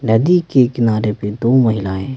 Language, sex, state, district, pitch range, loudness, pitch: Hindi, male, Bihar, Patna, 105-130 Hz, -15 LUFS, 115 Hz